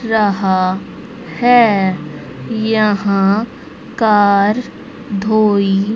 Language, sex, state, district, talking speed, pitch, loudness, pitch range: Hindi, female, Haryana, Rohtak, 50 wpm, 205 Hz, -14 LUFS, 195-220 Hz